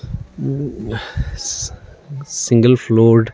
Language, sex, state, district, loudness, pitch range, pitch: Hindi, male, Himachal Pradesh, Shimla, -17 LUFS, 115-140 Hz, 125 Hz